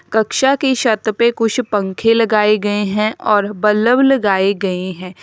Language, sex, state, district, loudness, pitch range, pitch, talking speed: Hindi, female, Uttar Pradesh, Lalitpur, -15 LUFS, 205-230 Hz, 215 Hz, 160 wpm